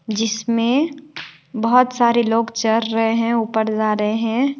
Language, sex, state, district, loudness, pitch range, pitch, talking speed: Hindi, female, Bihar, West Champaran, -18 LUFS, 220-240 Hz, 230 Hz, 145 wpm